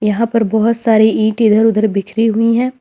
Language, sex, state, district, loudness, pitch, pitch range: Hindi, female, Jharkhand, Ranchi, -13 LUFS, 220 Hz, 215-230 Hz